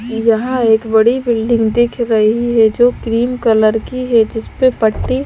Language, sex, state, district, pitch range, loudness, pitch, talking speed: Hindi, female, Bihar, Kaimur, 225-240 Hz, -14 LUFS, 230 Hz, 170 wpm